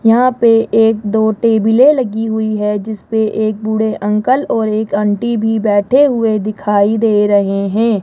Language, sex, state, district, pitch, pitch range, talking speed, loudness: Hindi, female, Rajasthan, Jaipur, 220 Hz, 210-225 Hz, 165 wpm, -13 LUFS